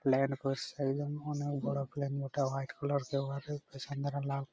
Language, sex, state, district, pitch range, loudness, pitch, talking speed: Bengali, male, West Bengal, Malda, 135-145 Hz, -36 LUFS, 140 Hz, 105 wpm